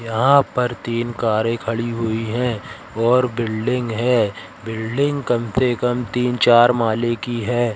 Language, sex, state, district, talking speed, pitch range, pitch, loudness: Hindi, male, Madhya Pradesh, Katni, 145 wpm, 115-125 Hz, 120 Hz, -19 LUFS